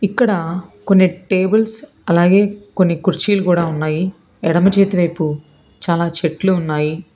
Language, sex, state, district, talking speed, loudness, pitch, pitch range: Telugu, female, Telangana, Hyderabad, 115 wpm, -16 LUFS, 180 Hz, 165-195 Hz